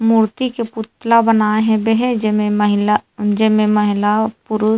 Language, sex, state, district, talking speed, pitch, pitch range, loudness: Chhattisgarhi, female, Chhattisgarh, Rajnandgaon, 150 wpm, 220 Hz, 210-225 Hz, -16 LUFS